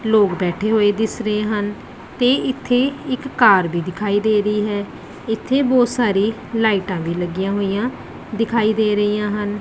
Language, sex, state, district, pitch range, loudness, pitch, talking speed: Punjabi, female, Punjab, Pathankot, 205-225 Hz, -19 LUFS, 210 Hz, 160 wpm